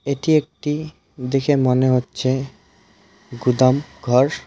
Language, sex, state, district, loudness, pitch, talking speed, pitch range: Bengali, male, West Bengal, Alipurduar, -19 LUFS, 130 Hz, 80 wpm, 125-145 Hz